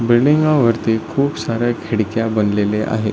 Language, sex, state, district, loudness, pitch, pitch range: Marathi, male, Maharashtra, Solapur, -17 LUFS, 115 Hz, 110-120 Hz